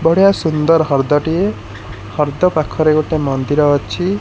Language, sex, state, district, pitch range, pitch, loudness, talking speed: Odia, male, Odisha, Khordha, 135-165 Hz, 150 Hz, -15 LUFS, 130 wpm